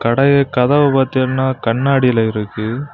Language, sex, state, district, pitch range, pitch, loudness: Tamil, male, Tamil Nadu, Kanyakumari, 115-135 Hz, 130 Hz, -15 LUFS